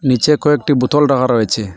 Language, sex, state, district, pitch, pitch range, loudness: Bengali, male, Assam, Hailakandi, 135 Hz, 120-150 Hz, -14 LUFS